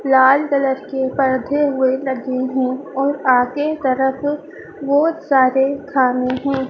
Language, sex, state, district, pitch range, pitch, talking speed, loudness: Hindi, female, Madhya Pradesh, Dhar, 260-285 Hz, 270 Hz, 125 wpm, -17 LUFS